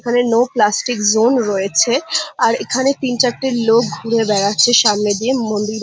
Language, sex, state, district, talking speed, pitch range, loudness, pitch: Bengali, female, West Bengal, Jhargram, 155 wpm, 210-245 Hz, -15 LUFS, 230 Hz